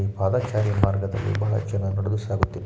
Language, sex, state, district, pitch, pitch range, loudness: Kannada, male, Karnataka, Shimoga, 100 Hz, 100-105 Hz, -24 LUFS